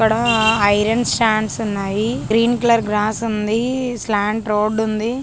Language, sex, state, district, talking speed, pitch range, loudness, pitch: Telugu, female, Andhra Pradesh, Chittoor, 125 wpm, 210-230 Hz, -18 LUFS, 220 Hz